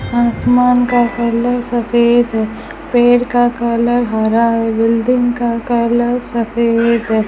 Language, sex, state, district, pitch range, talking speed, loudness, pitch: Hindi, female, Rajasthan, Bikaner, 230-245 Hz, 125 wpm, -14 LUFS, 235 Hz